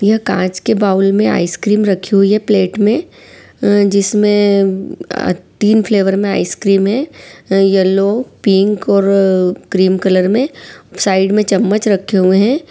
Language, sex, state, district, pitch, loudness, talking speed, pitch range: Hindi, female, Bihar, Saran, 200 Hz, -13 LUFS, 135 wpm, 190-210 Hz